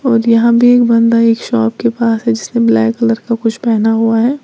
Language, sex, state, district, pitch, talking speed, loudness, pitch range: Hindi, female, Uttar Pradesh, Lalitpur, 230 Hz, 245 wpm, -12 LUFS, 225-235 Hz